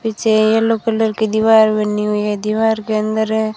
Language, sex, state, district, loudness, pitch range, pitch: Hindi, female, Rajasthan, Jaisalmer, -15 LUFS, 215-220 Hz, 220 Hz